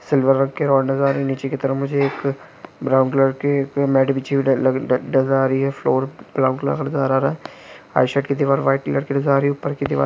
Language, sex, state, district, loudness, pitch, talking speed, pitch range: Hindi, male, Jharkhand, Sahebganj, -19 LUFS, 135 Hz, 195 wpm, 135-140 Hz